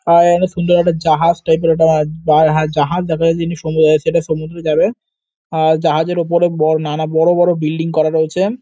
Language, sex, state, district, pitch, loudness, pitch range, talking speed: Bengali, male, West Bengal, North 24 Parganas, 160 Hz, -14 LUFS, 155-170 Hz, 195 wpm